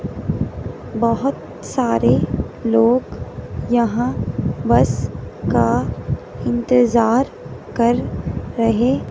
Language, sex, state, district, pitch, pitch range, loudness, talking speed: Hindi, female, Punjab, Fazilka, 235 Hz, 230-245 Hz, -19 LUFS, 60 wpm